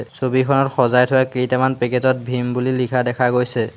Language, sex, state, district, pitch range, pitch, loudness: Assamese, male, Assam, Hailakandi, 125-130 Hz, 125 Hz, -18 LUFS